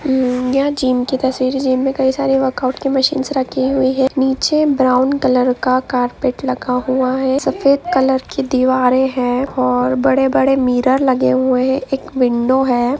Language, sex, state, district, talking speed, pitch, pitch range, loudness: Hindi, female, Andhra Pradesh, Anantapur, 175 wpm, 260 Hz, 255-270 Hz, -15 LUFS